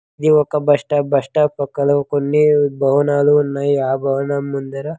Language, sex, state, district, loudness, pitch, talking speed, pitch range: Telugu, male, Andhra Pradesh, Sri Satya Sai, -16 LUFS, 145 Hz, 170 wpm, 140-150 Hz